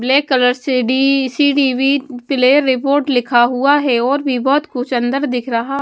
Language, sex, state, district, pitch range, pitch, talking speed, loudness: Hindi, female, Punjab, Kapurthala, 250-280 Hz, 265 Hz, 175 wpm, -15 LUFS